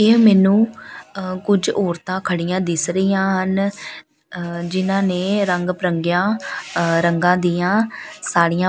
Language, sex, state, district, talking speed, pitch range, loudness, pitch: Punjabi, female, Punjab, Pathankot, 130 wpm, 175-195 Hz, -18 LUFS, 185 Hz